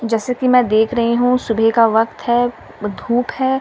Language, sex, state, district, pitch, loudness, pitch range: Hindi, female, Delhi, New Delhi, 235 Hz, -16 LUFS, 225-250 Hz